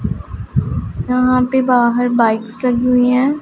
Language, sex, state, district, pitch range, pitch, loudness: Hindi, female, Punjab, Pathankot, 240-255 Hz, 250 Hz, -15 LUFS